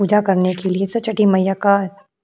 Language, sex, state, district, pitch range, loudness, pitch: Hindi, female, Uttar Pradesh, Jyotiba Phule Nagar, 190-210 Hz, -17 LUFS, 200 Hz